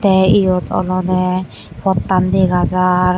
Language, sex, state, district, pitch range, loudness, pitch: Chakma, female, Tripura, West Tripura, 180-190 Hz, -15 LUFS, 185 Hz